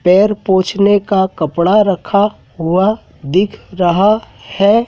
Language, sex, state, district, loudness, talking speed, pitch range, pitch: Hindi, male, Madhya Pradesh, Dhar, -14 LUFS, 110 wpm, 180-210 Hz, 195 Hz